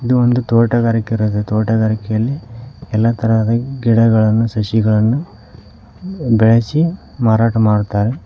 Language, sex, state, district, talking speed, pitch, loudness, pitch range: Kannada, male, Karnataka, Koppal, 85 wpm, 115 Hz, -15 LUFS, 110-120 Hz